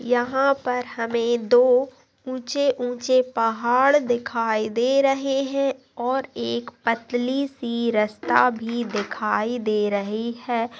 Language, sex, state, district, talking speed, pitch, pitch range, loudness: Hindi, female, Andhra Pradesh, Chittoor, 110 wpm, 245 Hz, 230-260 Hz, -22 LUFS